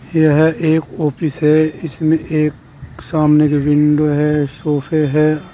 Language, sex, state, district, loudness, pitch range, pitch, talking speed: Hindi, male, Uttar Pradesh, Saharanpur, -15 LUFS, 150-155 Hz, 150 Hz, 130 wpm